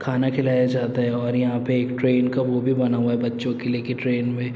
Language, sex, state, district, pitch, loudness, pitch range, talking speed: Hindi, male, Uttar Pradesh, Muzaffarnagar, 125 Hz, -22 LUFS, 120-125 Hz, 290 wpm